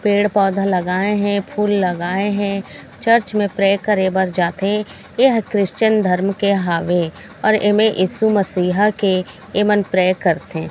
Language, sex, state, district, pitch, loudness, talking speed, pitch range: Chhattisgarhi, female, Chhattisgarh, Raigarh, 200 Hz, -17 LUFS, 145 wpm, 185-210 Hz